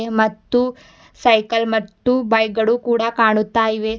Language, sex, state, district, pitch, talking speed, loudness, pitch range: Kannada, female, Karnataka, Bidar, 225 Hz, 120 wpm, -18 LUFS, 220-235 Hz